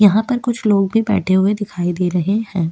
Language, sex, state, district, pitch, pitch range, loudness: Hindi, female, Chhattisgarh, Bastar, 200 Hz, 180-215 Hz, -17 LUFS